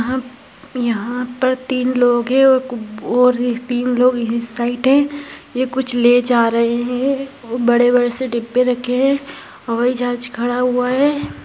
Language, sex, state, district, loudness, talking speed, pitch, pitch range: Hindi, female, Maharashtra, Aurangabad, -17 LUFS, 150 wpm, 250 Hz, 240-260 Hz